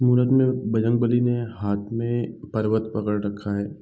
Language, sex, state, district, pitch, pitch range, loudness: Hindi, male, Bihar, Gopalganj, 115 Hz, 105-120 Hz, -23 LUFS